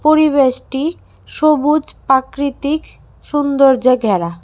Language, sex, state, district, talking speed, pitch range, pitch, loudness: Bengali, female, Tripura, West Tripura, 70 wpm, 260-300 Hz, 280 Hz, -15 LUFS